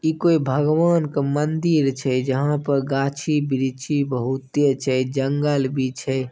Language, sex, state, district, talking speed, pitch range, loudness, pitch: Maithili, male, Bihar, Begusarai, 140 wpm, 130-150 Hz, -21 LUFS, 140 Hz